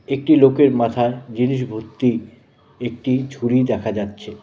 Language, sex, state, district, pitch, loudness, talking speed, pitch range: Bengali, male, West Bengal, Cooch Behar, 120 Hz, -19 LUFS, 120 wpm, 115-130 Hz